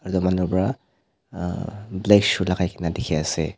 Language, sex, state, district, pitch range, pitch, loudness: Nagamese, male, Nagaland, Dimapur, 90-100 Hz, 95 Hz, -22 LUFS